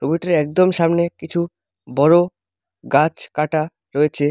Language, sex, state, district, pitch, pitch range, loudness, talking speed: Bengali, male, West Bengal, Alipurduar, 165 Hz, 150-170 Hz, -18 LUFS, 110 wpm